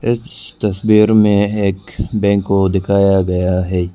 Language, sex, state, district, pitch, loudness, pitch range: Hindi, male, Arunachal Pradesh, Lower Dibang Valley, 100 Hz, -15 LUFS, 95-105 Hz